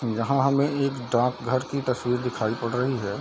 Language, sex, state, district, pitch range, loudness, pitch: Hindi, male, Bihar, Darbhanga, 120-135 Hz, -25 LUFS, 125 Hz